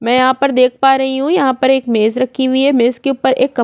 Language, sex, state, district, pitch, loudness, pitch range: Hindi, female, Chhattisgarh, Korba, 260 Hz, -13 LUFS, 250-270 Hz